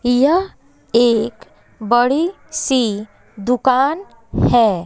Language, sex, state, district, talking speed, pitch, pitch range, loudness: Hindi, female, Bihar, West Champaran, 75 wpm, 245 Hz, 230-275 Hz, -17 LUFS